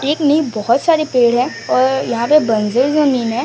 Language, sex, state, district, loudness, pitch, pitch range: Hindi, female, Odisha, Sambalpur, -14 LUFS, 260 Hz, 235-295 Hz